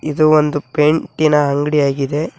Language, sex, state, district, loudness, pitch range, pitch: Kannada, male, Karnataka, Koppal, -15 LUFS, 145-155 Hz, 150 Hz